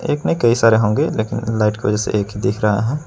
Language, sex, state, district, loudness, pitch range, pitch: Hindi, male, Jharkhand, Palamu, -17 LUFS, 105-115 Hz, 110 Hz